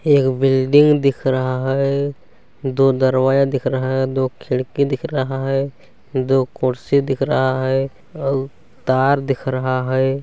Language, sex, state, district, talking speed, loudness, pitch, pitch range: Hindi, male, Chhattisgarh, Balrampur, 165 wpm, -18 LUFS, 135 Hz, 130-140 Hz